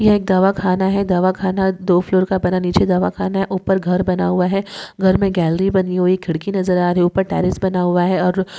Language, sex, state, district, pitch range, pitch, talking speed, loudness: Hindi, female, Maharashtra, Chandrapur, 180-195 Hz, 185 Hz, 230 wpm, -17 LUFS